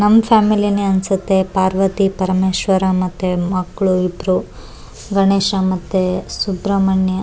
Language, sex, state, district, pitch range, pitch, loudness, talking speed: Kannada, female, Karnataka, Raichur, 185-195 Hz, 190 Hz, -16 LUFS, 110 wpm